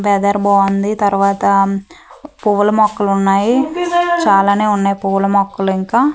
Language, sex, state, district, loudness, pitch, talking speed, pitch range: Telugu, female, Andhra Pradesh, Manyam, -14 LUFS, 200 Hz, 105 wpm, 195-215 Hz